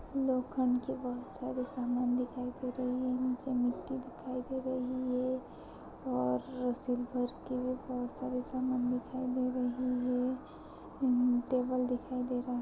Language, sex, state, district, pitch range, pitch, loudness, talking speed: Hindi, female, Chhattisgarh, Balrampur, 250-255 Hz, 250 Hz, -34 LUFS, 150 wpm